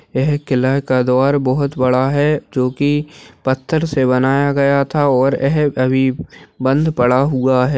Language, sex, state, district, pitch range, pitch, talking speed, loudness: Hindi, male, Bihar, Jahanabad, 130-145 Hz, 135 Hz, 160 wpm, -16 LUFS